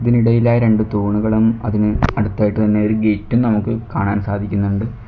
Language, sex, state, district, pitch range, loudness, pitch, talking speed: Malayalam, male, Kerala, Kollam, 105-115 Hz, -17 LUFS, 110 Hz, 130 wpm